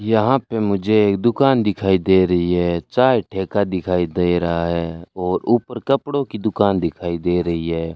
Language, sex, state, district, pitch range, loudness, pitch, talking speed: Hindi, male, Rajasthan, Bikaner, 90-110 Hz, -19 LUFS, 95 Hz, 180 wpm